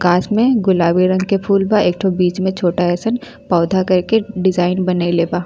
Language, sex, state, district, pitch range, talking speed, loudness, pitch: Bhojpuri, female, Uttar Pradesh, Ghazipur, 175-195 Hz, 195 wpm, -16 LUFS, 185 Hz